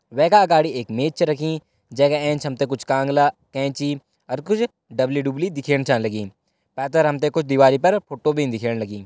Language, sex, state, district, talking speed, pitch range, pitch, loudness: Hindi, male, Uttarakhand, Tehri Garhwal, 210 wpm, 135-155 Hz, 140 Hz, -20 LUFS